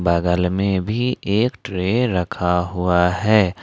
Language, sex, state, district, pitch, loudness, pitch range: Hindi, male, Jharkhand, Ranchi, 95 Hz, -19 LUFS, 90-110 Hz